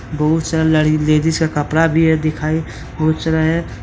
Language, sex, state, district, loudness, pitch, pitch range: Hindi, male, Jharkhand, Deoghar, -16 LUFS, 155 Hz, 155-160 Hz